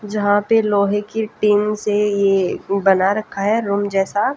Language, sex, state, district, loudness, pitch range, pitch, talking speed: Hindi, female, Haryana, Jhajjar, -18 LUFS, 200-210 Hz, 205 Hz, 165 wpm